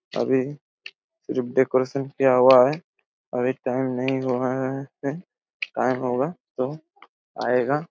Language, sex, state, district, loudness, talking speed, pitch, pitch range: Hindi, male, Chhattisgarh, Raigarh, -23 LUFS, 130 wpm, 130 Hz, 130-140 Hz